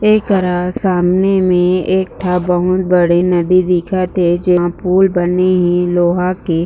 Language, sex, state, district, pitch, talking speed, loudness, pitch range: Chhattisgarhi, female, Chhattisgarh, Jashpur, 180 Hz, 135 wpm, -13 LUFS, 175-185 Hz